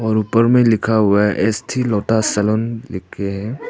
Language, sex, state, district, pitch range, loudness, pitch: Hindi, male, Arunachal Pradesh, Papum Pare, 105-115 Hz, -17 LUFS, 110 Hz